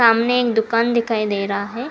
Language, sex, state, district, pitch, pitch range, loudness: Hindi, female, Karnataka, Bangalore, 230 Hz, 215-235 Hz, -19 LUFS